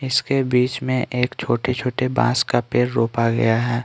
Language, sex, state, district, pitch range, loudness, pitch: Hindi, male, Bihar, Patna, 115-130 Hz, -20 LUFS, 125 Hz